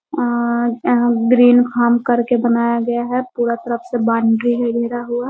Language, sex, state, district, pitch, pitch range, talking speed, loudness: Hindi, female, Bihar, Muzaffarpur, 240 Hz, 235-245 Hz, 180 wpm, -16 LUFS